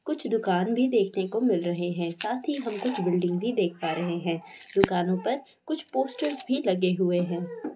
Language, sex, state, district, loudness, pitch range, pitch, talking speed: Hindi, female, West Bengal, Kolkata, -27 LUFS, 175-255 Hz, 200 Hz, 195 wpm